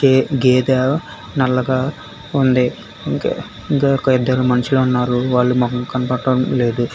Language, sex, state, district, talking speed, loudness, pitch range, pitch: Telugu, male, Telangana, Hyderabad, 120 wpm, -17 LUFS, 125-135 Hz, 130 Hz